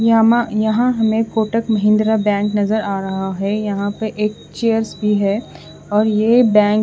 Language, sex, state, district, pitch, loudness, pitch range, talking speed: Hindi, female, Odisha, Khordha, 215 Hz, -17 LUFS, 205-225 Hz, 175 wpm